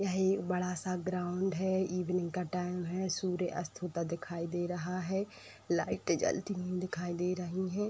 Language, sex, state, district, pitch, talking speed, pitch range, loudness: Hindi, female, Uttar Pradesh, Etah, 180 Hz, 180 wpm, 175-185 Hz, -35 LUFS